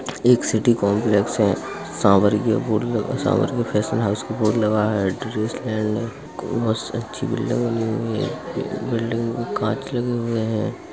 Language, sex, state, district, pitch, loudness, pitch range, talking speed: Hindi, male, Uttar Pradesh, Jalaun, 110 Hz, -22 LUFS, 105-120 Hz, 160 wpm